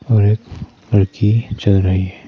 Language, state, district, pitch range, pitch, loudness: Hindi, Arunachal Pradesh, Papum Pare, 95-110 Hz, 105 Hz, -16 LUFS